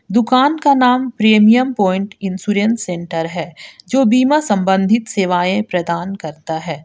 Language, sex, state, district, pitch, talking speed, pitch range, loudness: Hindi, female, Jharkhand, Garhwa, 200 Hz, 130 wpm, 180-240 Hz, -15 LUFS